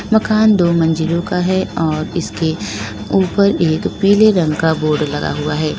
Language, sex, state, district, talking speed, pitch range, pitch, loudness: Hindi, female, Uttar Pradesh, Lalitpur, 165 wpm, 155-190 Hz, 165 Hz, -15 LUFS